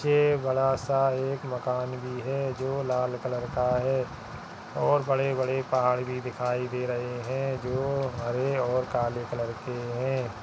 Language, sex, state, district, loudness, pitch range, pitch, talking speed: Hindi, male, Uttarakhand, Tehri Garhwal, -28 LUFS, 125-135 Hz, 125 Hz, 155 wpm